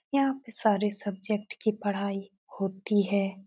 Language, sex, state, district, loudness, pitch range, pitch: Hindi, female, Uttar Pradesh, Etah, -30 LUFS, 195-215 Hz, 205 Hz